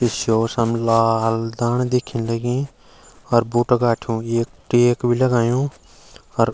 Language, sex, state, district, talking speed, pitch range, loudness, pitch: Garhwali, male, Uttarakhand, Uttarkashi, 140 wpm, 115-120 Hz, -20 LUFS, 120 Hz